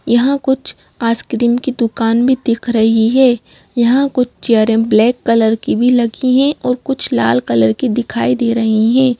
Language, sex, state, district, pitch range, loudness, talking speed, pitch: Hindi, female, Madhya Pradesh, Bhopal, 225-255 Hz, -14 LUFS, 175 wpm, 235 Hz